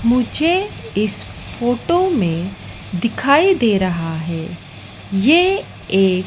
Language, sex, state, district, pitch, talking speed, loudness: Hindi, female, Madhya Pradesh, Dhar, 210 Hz, 95 wpm, -17 LUFS